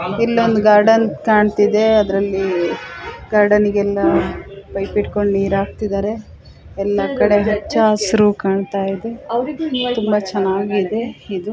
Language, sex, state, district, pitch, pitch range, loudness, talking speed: Kannada, female, Karnataka, Raichur, 205 Hz, 195-220 Hz, -17 LUFS, 95 wpm